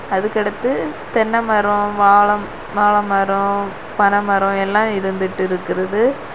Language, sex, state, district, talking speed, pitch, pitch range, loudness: Tamil, female, Tamil Nadu, Kanyakumari, 95 wpm, 205 Hz, 195-210 Hz, -17 LUFS